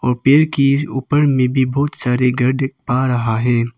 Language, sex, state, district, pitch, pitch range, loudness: Hindi, male, Arunachal Pradesh, Papum Pare, 130 Hz, 125-140 Hz, -16 LUFS